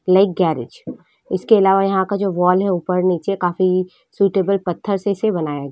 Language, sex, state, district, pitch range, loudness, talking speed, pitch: Hindi, female, Jharkhand, Sahebganj, 180-195 Hz, -18 LUFS, 210 wpm, 190 Hz